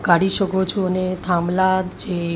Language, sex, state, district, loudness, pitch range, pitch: Gujarati, female, Maharashtra, Mumbai Suburban, -20 LUFS, 175-190 Hz, 185 Hz